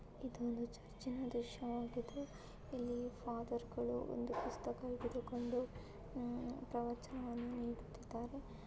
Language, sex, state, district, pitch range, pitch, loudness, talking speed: Kannada, female, Karnataka, Dharwad, 235-250 Hz, 240 Hz, -45 LUFS, 85 wpm